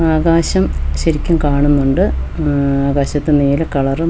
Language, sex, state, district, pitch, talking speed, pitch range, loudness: Malayalam, female, Kerala, Wayanad, 145 Hz, 145 wpm, 135-155 Hz, -15 LUFS